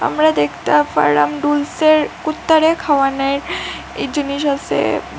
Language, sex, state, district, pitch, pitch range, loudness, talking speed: Bengali, female, Assam, Hailakandi, 290 Hz, 270-310 Hz, -16 LUFS, 105 wpm